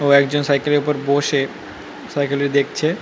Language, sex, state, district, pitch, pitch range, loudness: Bengali, male, West Bengal, North 24 Parganas, 140 Hz, 140-145 Hz, -18 LUFS